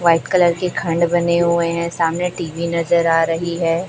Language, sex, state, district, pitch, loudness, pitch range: Hindi, male, Chhattisgarh, Raipur, 170 Hz, -18 LUFS, 165-170 Hz